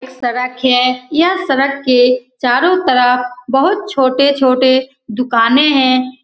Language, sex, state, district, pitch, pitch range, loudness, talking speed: Hindi, female, Bihar, Saran, 260 Hz, 250-275 Hz, -13 LUFS, 115 wpm